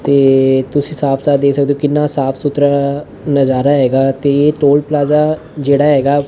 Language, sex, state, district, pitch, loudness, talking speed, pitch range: Punjabi, male, Punjab, Fazilka, 140 Hz, -13 LUFS, 165 wpm, 140-145 Hz